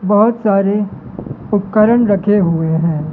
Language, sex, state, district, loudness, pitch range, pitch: Hindi, male, Madhya Pradesh, Katni, -14 LUFS, 175-210 Hz, 205 Hz